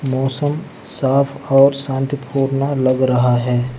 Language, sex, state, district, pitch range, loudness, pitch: Hindi, male, Arunachal Pradesh, Lower Dibang Valley, 130-140 Hz, -17 LUFS, 135 Hz